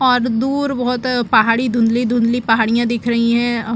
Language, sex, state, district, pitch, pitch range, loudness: Hindi, female, Chhattisgarh, Bastar, 240 Hz, 230-245 Hz, -16 LUFS